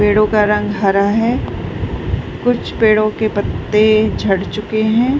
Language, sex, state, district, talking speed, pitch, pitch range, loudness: Hindi, female, Bihar, Vaishali, 140 wpm, 215 Hz, 210-220 Hz, -15 LUFS